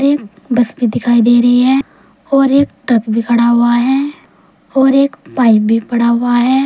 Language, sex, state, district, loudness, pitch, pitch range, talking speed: Hindi, female, Uttar Pradesh, Saharanpur, -12 LUFS, 245 Hz, 235-270 Hz, 190 wpm